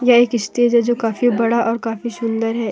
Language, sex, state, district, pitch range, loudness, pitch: Hindi, female, Jharkhand, Deoghar, 225-240 Hz, -17 LUFS, 235 Hz